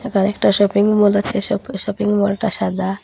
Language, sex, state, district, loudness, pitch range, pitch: Bengali, female, Assam, Hailakandi, -17 LUFS, 195-210 Hz, 205 Hz